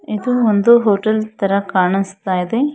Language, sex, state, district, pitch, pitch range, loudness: Kannada, female, Karnataka, Bangalore, 210 Hz, 195-235 Hz, -16 LUFS